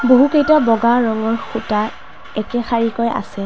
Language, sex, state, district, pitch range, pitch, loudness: Assamese, female, Assam, Kamrup Metropolitan, 225-240 Hz, 230 Hz, -16 LUFS